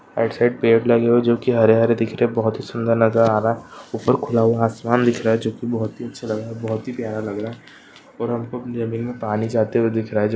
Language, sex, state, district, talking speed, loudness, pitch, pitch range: Hindi, male, Goa, North and South Goa, 300 wpm, -20 LUFS, 115 Hz, 110-120 Hz